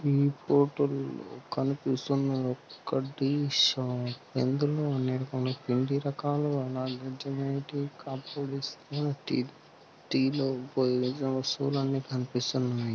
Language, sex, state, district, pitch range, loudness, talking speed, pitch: Telugu, male, Telangana, Karimnagar, 130-140 Hz, -30 LUFS, 50 wpm, 135 Hz